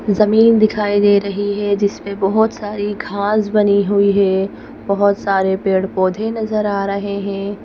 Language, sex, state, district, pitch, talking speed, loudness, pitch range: Hindi, female, Madhya Pradesh, Bhopal, 200 Hz, 165 wpm, -16 LUFS, 200-210 Hz